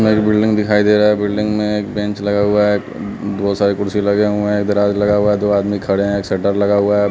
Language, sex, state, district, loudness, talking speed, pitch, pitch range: Hindi, male, Bihar, West Champaran, -16 LUFS, 270 wpm, 105 Hz, 100-105 Hz